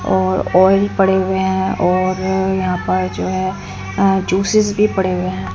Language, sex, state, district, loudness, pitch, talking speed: Hindi, female, Haryana, Rohtak, -16 LUFS, 185 Hz, 175 wpm